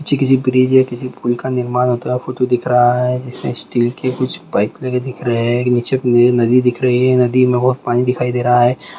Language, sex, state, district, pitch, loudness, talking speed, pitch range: Hindi, male, Chhattisgarh, Raigarh, 125 Hz, -15 LUFS, 235 wpm, 120-130 Hz